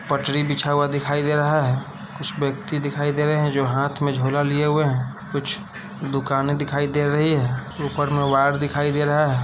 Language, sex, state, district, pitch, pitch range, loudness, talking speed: Hindi, male, Bihar, Saran, 145 Hz, 140-150 Hz, -21 LUFS, 210 wpm